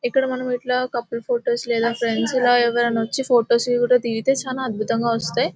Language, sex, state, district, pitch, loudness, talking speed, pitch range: Telugu, male, Telangana, Nalgonda, 240 Hz, -20 LUFS, 160 wpm, 235-250 Hz